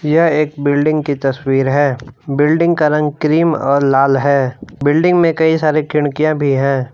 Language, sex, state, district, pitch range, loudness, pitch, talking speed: Hindi, male, Jharkhand, Palamu, 140-155 Hz, -14 LUFS, 145 Hz, 175 wpm